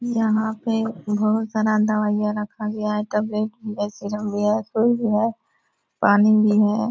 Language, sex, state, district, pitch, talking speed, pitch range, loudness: Hindi, female, Bihar, Purnia, 215 Hz, 175 wpm, 210-220 Hz, -21 LUFS